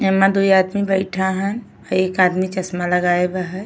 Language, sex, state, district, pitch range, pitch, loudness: Bhojpuri, female, Uttar Pradesh, Gorakhpur, 185-195 Hz, 190 Hz, -18 LUFS